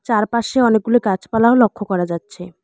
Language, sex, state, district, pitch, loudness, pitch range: Bengali, female, West Bengal, Alipurduar, 215 Hz, -17 LUFS, 185-235 Hz